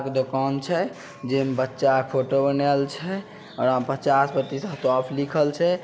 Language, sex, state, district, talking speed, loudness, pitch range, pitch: Maithili, male, Bihar, Samastipur, 185 wpm, -24 LUFS, 130-140 Hz, 135 Hz